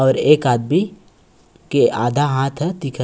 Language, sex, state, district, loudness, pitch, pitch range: Chhattisgarhi, male, Chhattisgarh, Raigarh, -17 LUFS, 140 Hz, 130-155 Hz